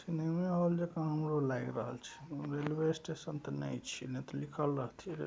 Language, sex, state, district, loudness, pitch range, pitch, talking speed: Maithili, male, Bihar, Saharsa, -37 LUFS, 130-160 Hz, 150 Hz, 180 wpm